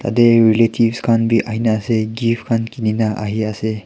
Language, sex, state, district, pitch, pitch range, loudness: Nagamese, male, Nagaland, Kohima, 115 Hz, 110-115 Hz, -16 LUFS